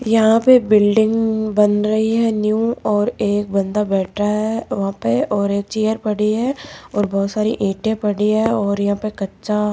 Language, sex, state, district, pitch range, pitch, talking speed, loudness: Hindi, female, Rajasthan, Jaipur, 205-220 Hz, 210 Hz, 185 wpm, -18 LUFS